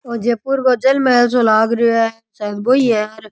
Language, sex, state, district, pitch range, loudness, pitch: Rajasthani, male, Rajasthan, Churu, 220-250 Hz, -15 LUFS, 235 Hz